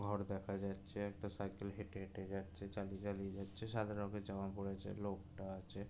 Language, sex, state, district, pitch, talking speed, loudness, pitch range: Bengali, male, West Bengal, Jalpaiguri, 100 Hz, 185 wpm, -46 LUFS, 95-100 Hz